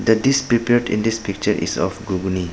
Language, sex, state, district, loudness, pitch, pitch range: English, male, Arunachal Pradesh, Papum Pare, -19 LUFS, 110 Hz, 95-120 Hz